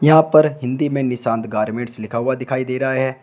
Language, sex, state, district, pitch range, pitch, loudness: Hindi, male, Uttar Pradesh, Shamli, 120-140 Hz, 130 Hz, -18 LUFS